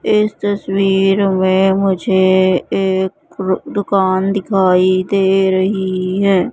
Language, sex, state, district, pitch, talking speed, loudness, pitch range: Hindi, female, Madhya Pradesh, Katni, 190 Hz, 100 wpm, -14 LUFS, 185-195 Hz